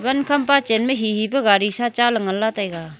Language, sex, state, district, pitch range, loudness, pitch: Wancho, female, Arunachal Pradesh, Longding, 205-260 Hz, -19 LUFS, 225 Hz